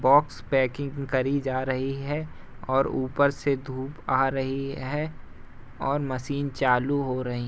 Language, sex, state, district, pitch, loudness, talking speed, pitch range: Hindi, male, Uttar Pradesh, Jalaun, 135 Hz, -27 LUFS, 145 wpm, 130-140 Hz